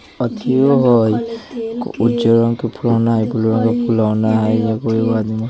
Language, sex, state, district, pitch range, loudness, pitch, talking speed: Bajjika, male, Bihar, Vaishali, 110-120 Hz, -16 LUFS, 115 Hz, 165 wpm